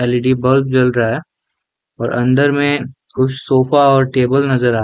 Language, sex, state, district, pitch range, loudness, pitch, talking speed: Hindi, male, Jharkhand, Jamtara, 125-135 Hz, -14 LUFS, 130 Hz, 175 wpm